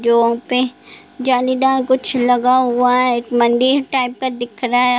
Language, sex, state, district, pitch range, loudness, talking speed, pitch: Hindi, female, Bihar, Sitamarhi, 245-260 Hz, -16 LUFS, 155 wpm, 250 Hz